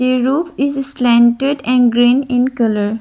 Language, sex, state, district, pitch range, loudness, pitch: English, female, Arunachal Pradesh, Lower Dibang Valley, 240-275 Hz, -14 LUFS, 255 Hz